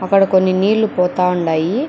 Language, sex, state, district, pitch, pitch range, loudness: Telugu, female, Andhra Pradesh, Chittoor, 185 Hz, 180-195 Hz, -15 LUFS